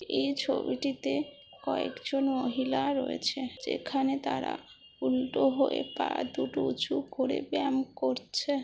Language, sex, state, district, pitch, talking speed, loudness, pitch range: Bengali, female, West Bengal, Jhargram, 270 Hz, 105 wpm, -31 LUFS, 260-280 Hz